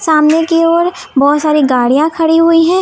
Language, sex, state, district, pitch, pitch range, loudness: Hindi, female, Uttar Pradesh, Lucknow, 325 Hz, 300-335 Hz, -10 LUFS